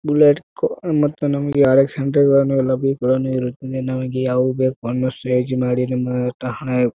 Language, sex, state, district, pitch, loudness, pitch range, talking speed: Kannada, male, Karnataka, Bijapur, 130 Hz, -19 LUFS, 125-140 Hz, 145 wpm